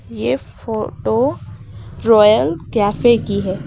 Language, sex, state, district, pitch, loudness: Hindi, female, Uttar Pradesh, Lucknow, 195 Hz, -16 LUFS